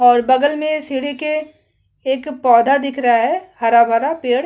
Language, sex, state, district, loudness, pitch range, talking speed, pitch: Hindi, female, Chhattisgarh, Kabirdham, -16 LUFS, 245-305 Hz, 175 wpm, 270 Hz